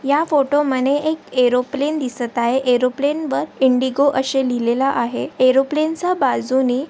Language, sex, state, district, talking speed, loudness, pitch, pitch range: Marathi, female, Maharashtra, Aurangabad, 120 wpm, -18 LUFS, 265 Hz, 250-290 Hz